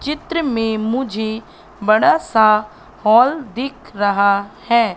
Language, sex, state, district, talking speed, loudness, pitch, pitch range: Hindi, female, Madhya Pradesh, Katni, 110 wpm, -17 LUFS, 220 Hz, 215-250 Hz